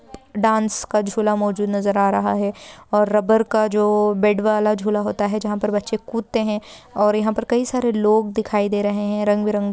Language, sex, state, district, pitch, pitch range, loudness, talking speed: Hindi, female, Uttarakhand, Uttarkashi, 210 Hz, 205-220 Hz, -20 LUFS, 215 wpm